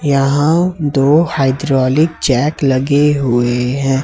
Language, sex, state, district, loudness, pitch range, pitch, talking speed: Hindi, male, Jharkhand, Ranchi, -13 LUFS, 130-150 Hz, 140 Hz, 105 wpm